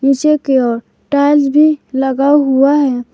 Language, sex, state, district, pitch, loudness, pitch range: Hindi, female, Jharkhand, Garhwa, 275 Hz, -12 LUFS, 265-290 Hz